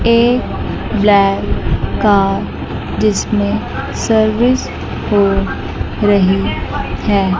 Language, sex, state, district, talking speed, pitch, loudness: Hindi, female, Chandigarh, Chandigarh, 65 wpm, 200 Hz, -15 LUFS